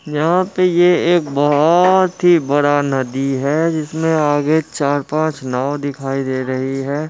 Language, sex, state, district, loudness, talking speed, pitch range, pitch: Hindi, male, Bihar, Muzaffarpur, -16 LUFS, 170 wpm, 140-165 Hz, 150 Hz